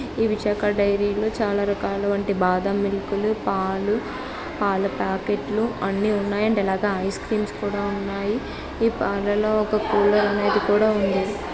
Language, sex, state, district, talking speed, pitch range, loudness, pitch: Telugu, female, Andhra Pradesh, Visakhapatnam, 125 wpm, 200-210 Hz, -23 LUFS, 205 Hz